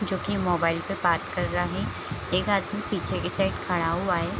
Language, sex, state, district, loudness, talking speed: Hindi, female, Bihar, Kishanganj, -26 LUFS, 245 wpm